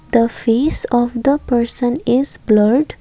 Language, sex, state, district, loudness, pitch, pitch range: English, female, Assam, Kamrup Metropolitan, -15 LUFS, 240 Hz, 235-270 Hz